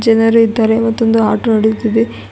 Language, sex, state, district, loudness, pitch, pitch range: Kannada, female, Karnataka, Bidar, -12 LUFS, 225 Hz, 220-225 Hz